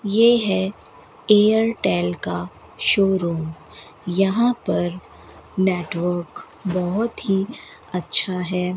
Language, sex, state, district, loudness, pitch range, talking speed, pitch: Hindi, female, Rajasthan, Bikaner, -21 LUFS, 175-210 Hz, 80 wpm, 190 Hz